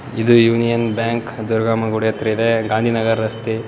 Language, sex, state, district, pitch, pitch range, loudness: Kannada, male, Karnataka, Bellary, 115 Hz, 110-115 Hz, -17 LUFS